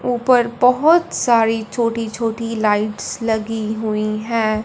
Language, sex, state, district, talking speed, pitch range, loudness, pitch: Hindi, female, Punjab, Fazilka, 115 wpm, 215-240 Hz, -18 LUFS, 225 Hz